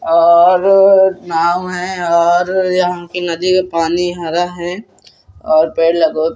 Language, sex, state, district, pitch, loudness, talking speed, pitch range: Hindi, male, Bihar, Araria, 175 Hz, -13 LUFS, 140 wpm, 165-185 Hz